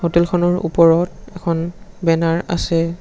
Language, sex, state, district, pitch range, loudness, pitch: Assamese, male, Assam, Sonitpur, 165-175 Hz, -17 LUFS, 170 Hz